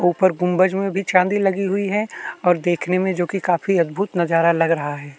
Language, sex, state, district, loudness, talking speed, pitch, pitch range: Hindi, male, Uttarakhand, Tehri Garhwal, -19 LUFS, 220 wpm, 180 Hz, 170-195 Hz